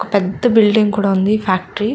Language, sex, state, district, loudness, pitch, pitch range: Telugu, female, Andhra Pradesh, Chittoor, -15 LUFS, 210 Hz, 195-215 Hz